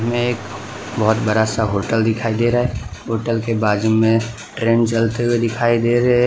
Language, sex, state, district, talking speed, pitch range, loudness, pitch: Hindi, male, Gujarat, Valsad, 190 wpm, 110-120 Hz, -18 LUFS, 115 Hz